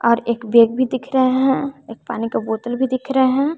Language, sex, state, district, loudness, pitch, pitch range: Hindi, female, Bihar, West Champaran, -18 LUFS, 255 Hz, 235-265 Hz